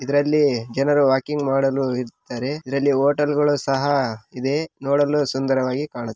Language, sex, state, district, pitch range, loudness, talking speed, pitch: Kannada, male, Karnataka, Raichur, 130-145 Hz, -21 LUFS, 115 wpm, 135 Hz